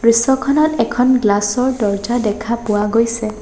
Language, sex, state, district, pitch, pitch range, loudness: Assamese, female, Assam, Sonitpur, 230 Hz, 210-250 Hz, -16 LUFS